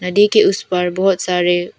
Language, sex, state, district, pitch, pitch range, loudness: Hindi, female, Arunachal Pradesh, Papum Pare, 180 Hz, 180-205 Hz, -15 LUFS